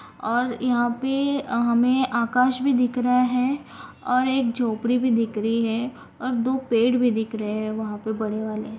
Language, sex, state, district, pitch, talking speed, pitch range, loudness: Hindi, female, Maharashtra, Aurangabad, 240 Hz, 190 wpm, 225-255 Hz, -23 LUFS